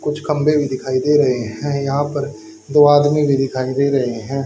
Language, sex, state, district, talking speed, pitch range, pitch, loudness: Hindi, male, Haryana, Charkhi Dadri, 215 wpm, 130-145 Hz, 140 Hz, -17 LUFS